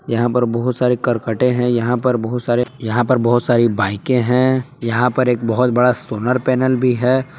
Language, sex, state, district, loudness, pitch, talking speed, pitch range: Hindi, male, Jharkhand, Palamu, -17 LUFS, 125 Hz, 205 wpm, 120-125 Hz